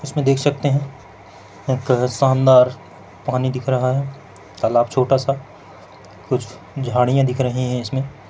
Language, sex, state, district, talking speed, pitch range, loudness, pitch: Hindi, male, Rajasthan, Churu, 130 wpm, 125-135 Hz, -19 LUFS, 130 Hz